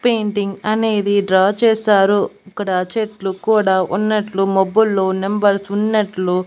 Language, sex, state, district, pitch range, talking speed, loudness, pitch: Telugu, female, Andhra Pradesh, Annamaya, 190-215 Hz, 100 wpm, -17 LUFS, 205 Hz